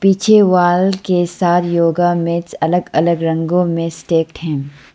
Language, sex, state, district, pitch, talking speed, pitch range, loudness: Hindi, female, Arunachal Pradesh, Lower Dibang Valley, 175 Hz, 145 wpm, 165-180 Hz, -15 LUFS